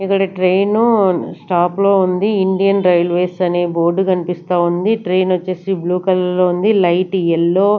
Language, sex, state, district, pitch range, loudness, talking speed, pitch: Telugu, female, Andhra Pradesh, Sri Satya Sai, 175-195 Hz, -15 LUFS, 145 wpm, 185 Hz